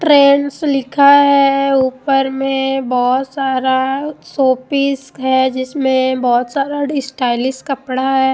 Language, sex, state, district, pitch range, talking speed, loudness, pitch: Hindi, female, Odisha, Malkangiri, 260-280 Hz, 110 wpm, -15 LUFS, 270 Hz